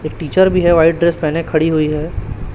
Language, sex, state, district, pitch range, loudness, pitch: Hindi, male, Chhattisgarh, Raipur, 155-170 Hz, -14 LUFS, 160 Hz